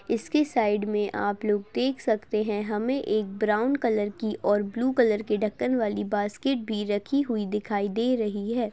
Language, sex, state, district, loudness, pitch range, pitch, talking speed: Hindi, female, Maharashtra, Nagpur, -26 LUFS, 205-240 Hz, 215 Hz, 185 wpm